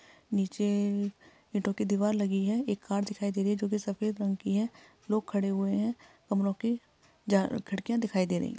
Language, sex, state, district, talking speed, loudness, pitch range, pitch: Hindi, female, Chhattisgarh, Sarguja, 200 wpm, -31 LUFS, 200-215 Hz, 205 Hz